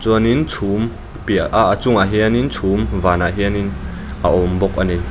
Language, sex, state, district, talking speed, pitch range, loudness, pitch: Mizo, male, Mizoram, Aizawl, 200 wpm, 90-110 Hz, -17 LUFS, 100 Hz